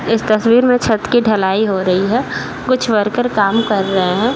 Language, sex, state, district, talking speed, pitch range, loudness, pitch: Hindi, male, Bihar, Saran, 205 wpm, 200-240 Hz, -14 LUFS, 220 Hz